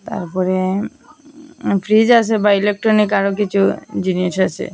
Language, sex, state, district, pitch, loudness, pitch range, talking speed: Bengali, female, Assam, Hailakandi, 205 Hz, -16 LUFS, 190-225 Hz, 115 wpm